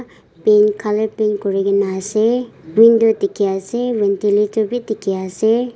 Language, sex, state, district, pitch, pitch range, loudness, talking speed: Nagamese, female, Nagaland, Kohima, 210 Hz, 200-225 Hz, -16 LUFS, 105 wpm